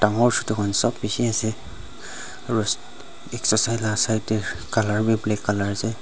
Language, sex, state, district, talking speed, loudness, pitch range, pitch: Nagamese, male, Nagaland, Dimapur, 130 wpm, -23 LUFS, 105-110 Hz, 110 Hz